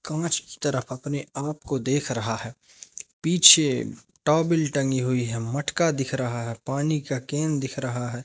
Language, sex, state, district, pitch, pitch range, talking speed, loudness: Hindi, male, Madhya Pradesh, Umaria, 140 Hz, 125-150 Hz, 165 wpm, -24 LUFS